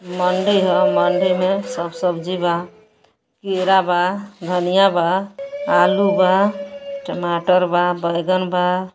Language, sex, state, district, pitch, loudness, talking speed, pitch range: Hindi, female, Uttar Pradesh, Gorakhpur, 185 Hz, -18 LUFS, 115 wpm, 180-200 Hz